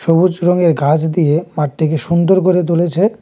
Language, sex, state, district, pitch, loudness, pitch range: Bengali, male, Tripura, West Tripura, 170 Hz, -14 LUFS, 160-180 Hz